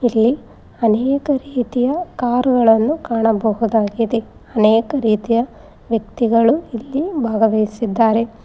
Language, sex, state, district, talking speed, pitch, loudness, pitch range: Kannada, female, Karnataka, Koppal, 70 wpm, 230 Hz, -17 LUFS, 225-255 Hz